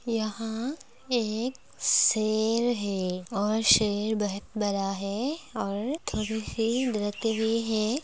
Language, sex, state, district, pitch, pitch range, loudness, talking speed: Hindi, female, Andhra Pradesh, Srikakulam, 220 Hz, 205-235 Hz, -27 LUFS, 65 wpm